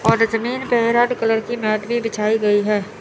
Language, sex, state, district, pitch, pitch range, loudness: Hindi, female, Chandigarh, Chandigarh, 225 Hz, 215-235 Hz, -19 LUFS